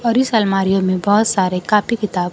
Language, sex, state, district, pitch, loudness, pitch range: Hindi, female, Bihar, Kaimur, 205 Hz, -16 LUFS, 185-225 Hz